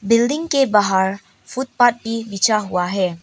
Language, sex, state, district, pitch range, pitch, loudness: Hindi, female, Arunachal Pradesh, Papum Pare, 195-245 Hz, 215 Hz, -18 LUFS